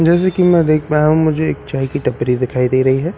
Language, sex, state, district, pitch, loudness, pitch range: Hindi, male, Bihar, Katihar, 150 Hz, -15 LUFS, 130-165 Hz